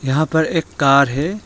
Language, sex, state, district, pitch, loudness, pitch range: Hindi, male, Arunachal Pradesh, Longding, 155 Hz, -16 LUFS, 140-160 Hz